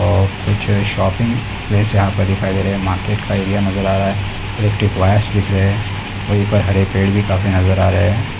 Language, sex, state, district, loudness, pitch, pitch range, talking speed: Hindi, male, Uttar Pradesh, Deoria, -16 LUFS, 100 Hz, 95-105 Hz, 245 wpm